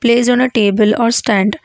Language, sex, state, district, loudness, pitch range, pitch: English, female, Karnataka, Bangalore, -13 LUFS, 210-240 Hz, 235 Hz